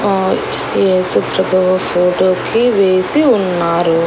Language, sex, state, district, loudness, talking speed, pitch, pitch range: Telugu, female, Andhra Pradesh, Annamaya, -13 LUFS, 90 wpm, 185 Hz, 180-195 Hz